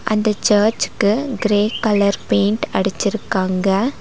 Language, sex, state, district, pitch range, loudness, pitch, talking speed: Tamil, female, Tamil Nadu, Nilgiris, 200-220 Hz, -18 LUFS, 210 Hz, 90 wpm